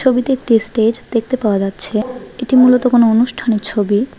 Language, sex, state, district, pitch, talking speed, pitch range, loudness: Bengali, female, West Bengal, Alipurduar, 230 Hz, 155 wpm, 220-250 Hz, -14 LUFS